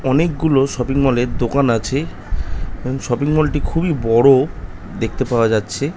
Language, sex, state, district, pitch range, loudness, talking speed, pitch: Bengali, male, West Bengal, North 24 Parganas, 115-145 Hz, -17 LUFS, 140 wpm, 130 Hz